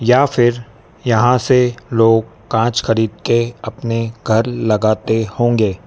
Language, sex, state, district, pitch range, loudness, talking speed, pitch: Hindi, male, Madhya Pradesh, Dhar, 110-120 Hz, -16 LUFS, 125 wpm, 115 Hz